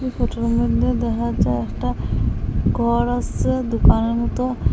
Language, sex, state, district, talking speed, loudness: Bengali, female, Assam, Hailakandi, 115 wpm, -20 LUFS